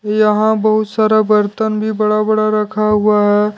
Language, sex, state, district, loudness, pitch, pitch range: Hindi, male, Jharkhand, Deoghar, -14 LUFS, 215 Hz, 210-215 Hz